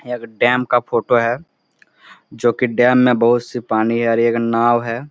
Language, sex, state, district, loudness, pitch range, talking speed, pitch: Hindi, male, Bihar, Supaul, -16 LUFS, 115-125 Hz, 225 wpm, 120 Hz